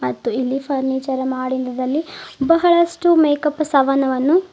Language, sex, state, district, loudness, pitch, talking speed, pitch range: Kannada, female, Karnataka, Bidar, -18 LUFS, 275 Hz, 105 wpm, 260-320 Hz